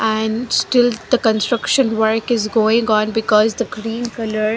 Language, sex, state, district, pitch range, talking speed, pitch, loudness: English, female, Punjab, Fazilka, 220-235 Hz, 160 wpm, 225 Hz, -17 LUFS